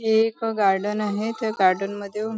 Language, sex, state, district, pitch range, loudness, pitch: Marathi, female, Maharashtra, Nagpur, 200-220 Hz, -23 LUFS, 210 Hz